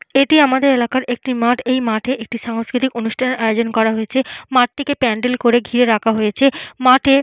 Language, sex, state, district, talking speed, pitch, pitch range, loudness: Bengali, female, Jharkhand, Jamtara, 175 wpm, 250 Hz, 230-265 Hz, -16 LUFS